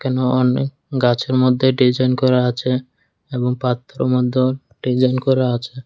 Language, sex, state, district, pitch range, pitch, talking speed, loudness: Bengali, male, Tripura, West Tripura, 125-130 Hz, 130 Hz, 135 wpm, -18 LUFS